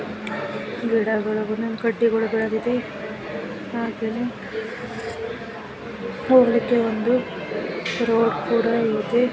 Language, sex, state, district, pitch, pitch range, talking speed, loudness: Kannada, female, Karnataka, Gulbarga, 230 Hz, 220-235 Hz, 65 wpm, -23 LUFS